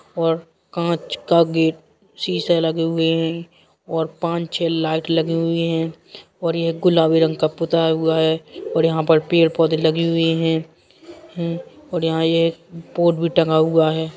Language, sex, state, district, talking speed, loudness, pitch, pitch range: Bundeli, male, Uttar Pradesh, Jalaun, 165 wpm, -19 LUFS, 165 Hz, 160-170 Hz